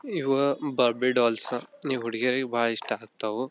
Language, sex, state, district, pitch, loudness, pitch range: Kannada, male, Karnataka, Belgaum, 125 Hz, -27 LUFS, 120-135 Hz